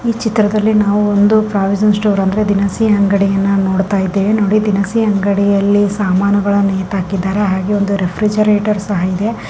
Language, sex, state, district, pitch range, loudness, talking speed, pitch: Kannada, female, Karnataka, Gulbarga, 195-210 Hz, -14 LUFS, 170 wpm, 200 Hz